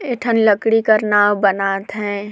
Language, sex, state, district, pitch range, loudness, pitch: Sadri, female, Chhattisgarh, Jashpur, 200-225 Hz, -16 LUFS, 210 Hz